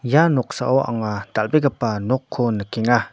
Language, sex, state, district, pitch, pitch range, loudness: Garo, male, Meghalaya, North Garo Hills, 120 Hz, 110-135 Hz, -20 LUFS